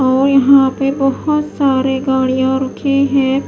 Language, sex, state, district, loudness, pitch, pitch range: Hindi, female, Maharashtra, Mumbai Suburban, -14 LUFS, 270 Hz, 265-275 Hz